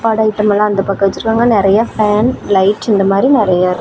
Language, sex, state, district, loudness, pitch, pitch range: Tamil, female, Tamil Nadu, Namakkal, -12 LUFS, 210 Hz, 195-225 Hz